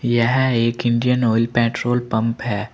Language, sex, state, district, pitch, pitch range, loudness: Hindi, male, Uttar Pradesh, Saharanpur, 120 Hz, 115-120 Hz, -19 LUFS